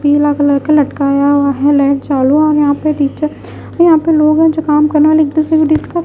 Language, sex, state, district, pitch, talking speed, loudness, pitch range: Hindi, female, Bihar, West Champaran, 300 Hz, 245 wpm, -11 LUFS, 285-310 Hz